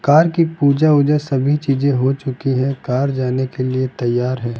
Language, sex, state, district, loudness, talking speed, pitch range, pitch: Hindi, male, Rajasthan, Jaipur, -17 LUFS, 195 wpm, 130-145 Hz, 135 Hz